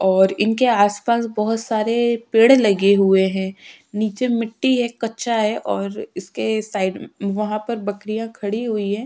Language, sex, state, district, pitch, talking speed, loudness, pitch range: Hindi, female, Uttarakhand, Tehri Garhwal, 215 Hz, 150 wpm, -19 LUFS, 200-230 Hz